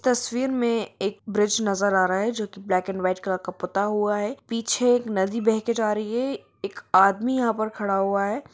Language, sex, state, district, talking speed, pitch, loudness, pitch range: Hindi, female, Jharkhand, Sahebganj, 230 wpm, 210 Hz, -24 LUFS, 195-230 Hz